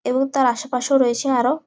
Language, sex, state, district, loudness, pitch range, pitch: Bengali, female, West Bengal, Jalpaiguri, -19 LUFS, 250-275 Hz, 255 Hz